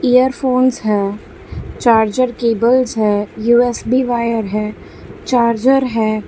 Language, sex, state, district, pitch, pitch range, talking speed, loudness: Hindi, female, Gujarat, Valsad, 235 Hz, 215-255 Hz, 95 wpm, -15 LUFS